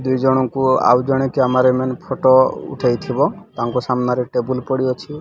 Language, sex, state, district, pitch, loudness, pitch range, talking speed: Odia, male, Odisha, Malkangiri, 130 Hz, -17 LUFS, 125-130 Hz, 150 wpm